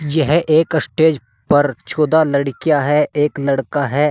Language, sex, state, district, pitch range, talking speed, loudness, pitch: Hindi, male, Uttar Pradesh, Saharanpur, 140-155 Hz, 145 wpm, -16 LUFS, 150 Hz